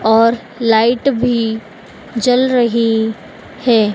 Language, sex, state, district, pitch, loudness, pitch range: Hindi, female, Madhya Pradesh, Dhar, 230 Hz, -14 LUFS, 225-245 Hz